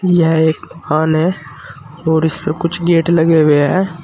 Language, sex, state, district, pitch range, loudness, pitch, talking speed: Hindi, male, Uttar Pradesh, Saharanpur, 155-170 Hz, -14 LUFS, 160 Hz, 165 wpm